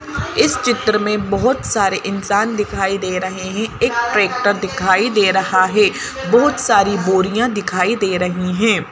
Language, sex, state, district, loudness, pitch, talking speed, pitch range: Hindi, female, Madhya Pradesh, Bhopal, -16 LUFS, 200 Hz, 155 wpm, 190-225 Hz